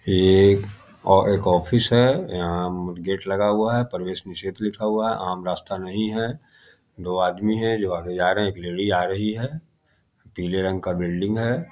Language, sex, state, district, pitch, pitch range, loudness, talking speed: Hindi, male, Bihar, Muzaffarpur, 95 Hz, 90-110 Hz, -22 LUFS, 195 wpm